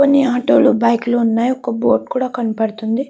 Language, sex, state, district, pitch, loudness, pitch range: Telugu, female, Andhra Pradesh, Guntur, 240 Hz, -16 LUFS, 230-260 Hz